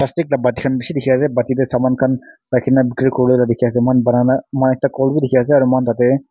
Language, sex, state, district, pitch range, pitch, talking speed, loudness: Nagamese, male, Nagaland, Kohima, 125-135 Hz, 130 Hz, 305 wpm, -16 LUFS